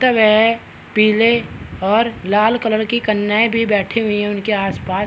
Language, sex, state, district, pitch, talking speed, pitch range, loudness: Hindi, male, Chhattisgarh, Balrampur, 215 Hz, 175 wpm, 205-230 Hz, -15 LUFS